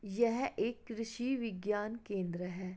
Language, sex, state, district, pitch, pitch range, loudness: Hindi, female, Uttar Pradesh, Jalaun, 220 Hz, 195-235 Hz, -37 LUFS